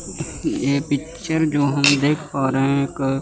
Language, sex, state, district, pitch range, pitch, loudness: Hindi, male, Chandigarh, Chandigarh, 140-150 Hz, 140 Hz, -20 LUFS